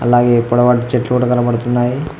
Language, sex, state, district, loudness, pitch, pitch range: Telugu, male, Telangana, Mahabubabad, -14 LUFS, 120 Hz, 120-125 Hz